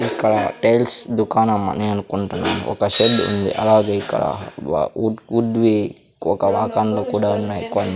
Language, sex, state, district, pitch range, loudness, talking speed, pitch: Telugu, male, Andhra Pradesh, Sri Satya Sai, 100-110 Hz, -18 LUFS, 145 wpm, 105 Hz